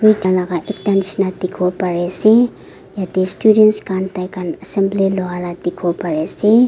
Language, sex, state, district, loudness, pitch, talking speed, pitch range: Nagamese, female, Nagaland, Dimapur, -17 LUFS, 190 Hz, 115 wpm, 180-200 Hz